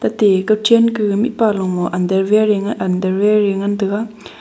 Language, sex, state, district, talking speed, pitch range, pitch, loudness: Wancho, female, Arunachal Pradesh, Longding, 110 wpm, 190-215 Hz, 205 Hz, -16 LUFS